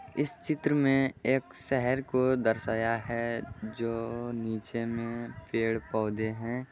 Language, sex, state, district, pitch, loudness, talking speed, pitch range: Magahi, male, Bihar, Jahanabad, 115 Hz, -31 LUFS, 115 wpm, 115-130 Hz